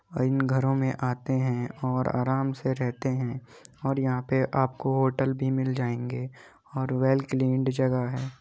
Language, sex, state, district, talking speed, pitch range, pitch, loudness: Hindi, male, Uttar Pradesh, Muzaffarnagar, 170 wpm, 130-135 Hz, 130 Hz, -27 LUFS